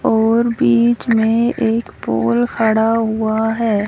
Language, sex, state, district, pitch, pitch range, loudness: Hindi, female, Haryana, Rohtak, 225 Hz, 220-230 Hz, -16 LUFS